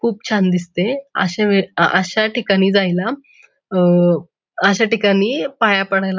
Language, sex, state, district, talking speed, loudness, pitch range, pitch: Marathi, female, Maharashtra, Pune, 125 wpm, -16 LUFS, 185-225 Hz, 195 Hz